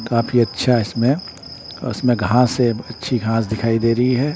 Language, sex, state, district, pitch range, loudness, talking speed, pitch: Hindi, male, Bihar, Patna, 115-125 Hz, -18 LUFS, 180 wpm, 120 Hz